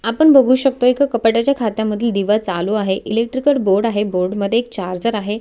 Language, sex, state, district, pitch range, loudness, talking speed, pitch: Marathi, female, Maharashtra, Solapur, 205-250 Hz, -16 LUFS, 200 wpm, 225 Hz